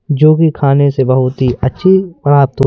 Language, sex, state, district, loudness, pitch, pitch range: Hindi, male, Madhya Pradesh, Bhopal, -11 LUFS, 140 Hz, 130-155 Hz